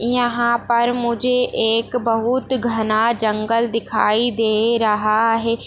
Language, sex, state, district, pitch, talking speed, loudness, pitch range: Hindi, female, Bihar, Darbhanga, 230 Hz, 115 wpm, -18 LUFS, 225-240 Hz